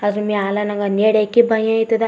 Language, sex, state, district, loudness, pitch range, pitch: Kannada, female, Karnataka, Chamarajanagar, -17 LUFS, 205-225 Hz, 210 Hz